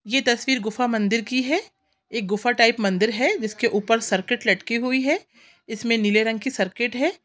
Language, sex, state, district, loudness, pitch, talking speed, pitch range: Hindi, female, Chhattisgarh, Sukma, -22 LUFS, 230 Hz, 190 wpm, 215-255 Hz